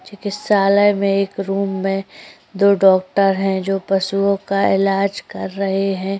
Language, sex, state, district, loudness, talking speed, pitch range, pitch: Hindi, female, Uttar Pradesh, Jyotiba Phule Nagar, -17 LUFS, 135 wpm, 195-200 Hz, 195 Hz